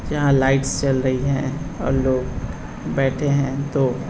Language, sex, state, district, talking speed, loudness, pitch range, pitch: Hindi, male, Uttar Pradesh, Deoria, 160 wpm, -21 LUFS, 130-140 Hz, 135 Hz